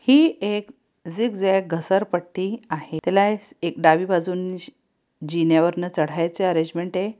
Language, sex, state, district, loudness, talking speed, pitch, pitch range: Marathi, female, Maharashtra, Pune, -22 LUFS, 125 wpm, 180 Hz, 165-200 Hz